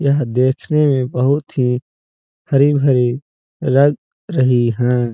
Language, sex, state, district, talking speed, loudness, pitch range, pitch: Hindi, male, Uttar Pradesh, Jalaun, 105 wpm, -16 LUFS, 125-140 Hz, 130 Hz